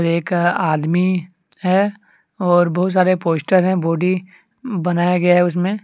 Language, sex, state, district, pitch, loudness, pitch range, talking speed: Hindi, male, Jharkhand, Deoghar, 180 Hz, -17 LUFS, 175-185 Hz, 135 wpm